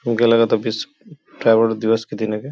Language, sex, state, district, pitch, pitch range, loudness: Bhojpuri, male, Uttar Pradesh, Gorakhpur, 115 Hz, 110-115 Hz, -18 LUFS